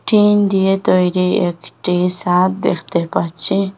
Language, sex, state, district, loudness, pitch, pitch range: Bengali, female, Assam, Hailakandi, -16 LUFS, 185 Hz, 180-195 Hz